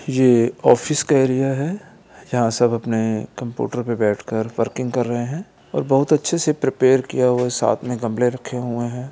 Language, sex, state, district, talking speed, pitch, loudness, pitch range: Hindi, male, Bihar, Gopalganj, 200 wpm, 125 Hz, -20 LUFS, 120-135 Hz